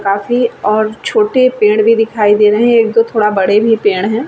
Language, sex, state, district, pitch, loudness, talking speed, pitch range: Hindi, female, Bihar, Vaishali, 220 Hz, -11 LUFS, 225 wpm, 210-235 Hz